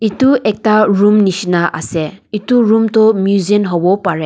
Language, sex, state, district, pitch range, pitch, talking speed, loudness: Nagamese, female, Nagaland, Dimapur, 190-220 Hz, 205 Hz, 155 wpm, -12 LUFS